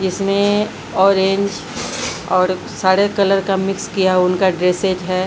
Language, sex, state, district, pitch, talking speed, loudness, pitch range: Hindi, female, Bihar, Patna, 190 Hz, 125 wpm, -17 LUFS, 185-195 Hz